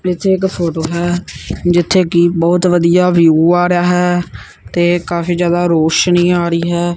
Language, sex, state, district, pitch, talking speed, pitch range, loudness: Punjabi, male, Punjab, Kapurthala, 175 Hz, 165 wpm, 170-180 Hz, -13 LUFS